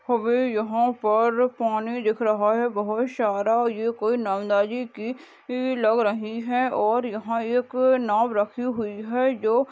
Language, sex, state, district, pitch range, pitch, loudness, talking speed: Hindi, female, Goa, North and South Goa, 215-245 Hz, 230 Hz, -24 LUFS, 140 wpm